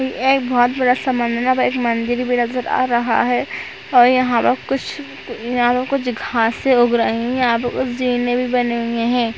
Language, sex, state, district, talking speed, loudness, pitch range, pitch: Hindi, female, Uttar Pradesh, Etah, 200 wpm, -17 LUFS, 235-255 Hz, 245 Hz